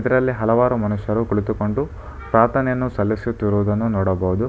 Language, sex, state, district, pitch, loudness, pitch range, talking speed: Kannada, male, Karnataka, Bangalore, 110 Hz, -20 LUFS, 105-120 Hz, 95 wpm